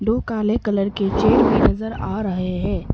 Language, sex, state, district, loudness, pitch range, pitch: Hindi, female, Arunachal Pradesh, Papum Pare, -20 LUFS, 195-220 Hz, 205 Hz